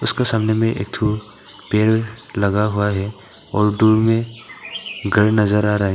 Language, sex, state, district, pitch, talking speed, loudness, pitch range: Hindi, male, Arunachal Pradesh, Papum Pare, 105 Hz, 170 wpm, -18 LUFS, 105-110 Hz